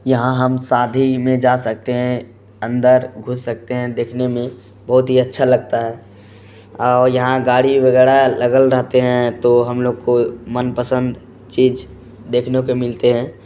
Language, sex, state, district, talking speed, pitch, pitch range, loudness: Hindi, male, Bihar, Supaul, 155 wpm, 125 Hz, 120-130 Hz, -16 LUFS